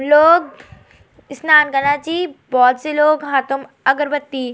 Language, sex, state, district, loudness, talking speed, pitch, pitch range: Garhwali, female, Uttarakhand, Tehri Garhwal, -15 LUFS, 120 wpm, 290 Hz, 275-305 Hz